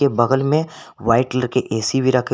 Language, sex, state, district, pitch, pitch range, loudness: Hindi, male, Jharkhand, Garhwa, 130 Hz, 120-135 Hz, -18 LUFS